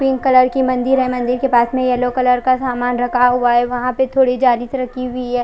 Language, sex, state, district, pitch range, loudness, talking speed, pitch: Hindi, female, Odisha, Khordha, 245-255 Hz, -16 LUFS, 245 wpm, 250 Hz